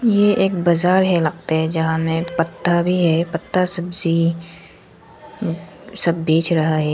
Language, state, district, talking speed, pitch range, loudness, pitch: Hindi, Arunachal Pradesh, Lower Dibang Valley, 145 wpm, 165-180 Hz, -18 LUFS, 170 Hz